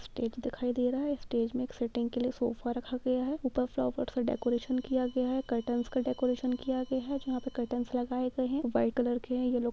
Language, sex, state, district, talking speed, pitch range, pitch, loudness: Hindi, female, Jharkhand, Jamtara, 235 wpm, 240-255 Hz, 250 Hz, -33 LUFS